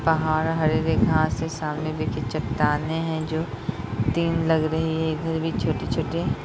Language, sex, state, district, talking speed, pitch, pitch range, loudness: Hindi, female, Bihar, Sitamarhi, 175 wpm, 160 Hz, 155-160 Hz, -24 LUFS